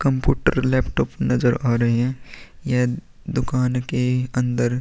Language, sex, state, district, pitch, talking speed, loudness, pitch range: Hindi, male, Chhattisgarh, Korba, 125 Hz, 135 wpm, -21 LUFS, 120-130 Hz